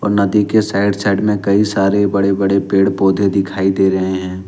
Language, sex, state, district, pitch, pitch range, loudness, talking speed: Hindi, male, Jharkhand, Ranchi, 100 Hz, 95-100 Hz, -15 LUFS, 215 wpm